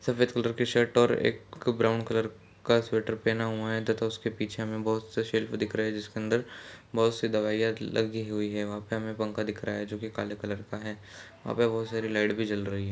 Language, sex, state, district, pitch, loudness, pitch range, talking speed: Hindi, male, Chhattisgarh, Raigarh, 110 Hz, -30 LUFS, 105-115 Hz, 240 wpm